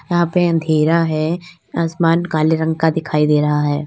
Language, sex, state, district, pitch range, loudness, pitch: Hindi, female, Uttar Pradesh, Lalitpur, 155-170 Hz, -17 LUFS, 160 Hz